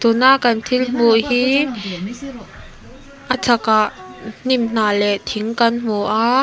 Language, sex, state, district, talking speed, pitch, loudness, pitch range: Mizo, female, Mizoram, Aizawl, 130 wpm, 230 Hz, -17 LUFS, 215-255 Hz